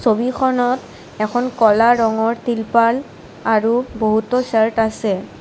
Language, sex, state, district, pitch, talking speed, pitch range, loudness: Assamese, female, Assam, Kamrup Metropolitan, 230 Hz, 100 wpm, 220-245 Hz, -17 LUFS